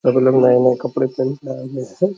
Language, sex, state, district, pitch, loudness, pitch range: Hindi, male, Bihar, Purnia, 130 Hz, -17 LUFS, 125-135 Hz